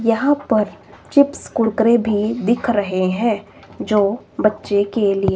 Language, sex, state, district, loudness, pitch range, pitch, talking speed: Hindi, female, Himachal Pradesh, Shimla, -18 LUFS, 205-235 Hz, 215 Hz, 135 wpm